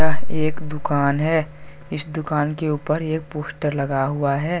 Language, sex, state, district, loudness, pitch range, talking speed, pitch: Hindi, male, Jharkhand, Deoghar, -23 LUFS, 145-155 Hz, 155 wpm, 150 Hz